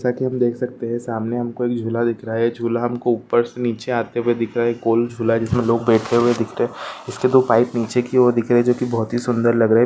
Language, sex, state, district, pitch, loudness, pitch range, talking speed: Hindi, male, Andhra Pradesh, Krishna, 120 Hz, -19 LUFS, 115-120 Hz, 285 wpm